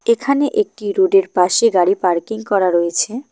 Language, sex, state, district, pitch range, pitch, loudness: Bengali, female, West Bengal, Cooch Behar, 180-230 Hz, 200 Hz, -16 LUFS